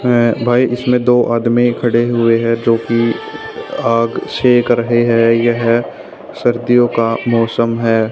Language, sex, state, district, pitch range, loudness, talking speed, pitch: Hindi, male, Haryana, Jhajjar, 115-120 Hz, -14 LUFS, 125 wpm, 115 Hz